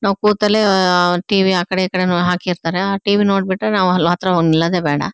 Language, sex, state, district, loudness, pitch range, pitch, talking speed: Kannada, female, Karnataka, Shimoga, -15 LUFS, 175-195 Hz, 185 Hz, 185 wpm